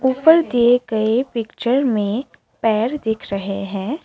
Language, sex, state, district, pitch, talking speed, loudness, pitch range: Hindi, female, Assam, Kamrup Metropolitan, 235 Hz, 135 wpm, -18 LUFS, 215-265 Hz